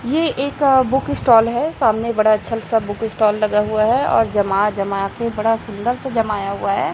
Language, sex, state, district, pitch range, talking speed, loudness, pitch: Hindi, female, Chhattisgarh, Raipur, 210-240 Hz, 205 wpm, -18 LUFS, 225 Hz